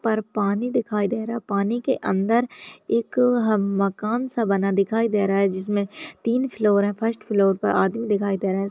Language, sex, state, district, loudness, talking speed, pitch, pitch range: Hindi, female, Uttar Pradesh, Deoria, -22 LUFS, 220 wpm, 210 Hz, 200-230 Hz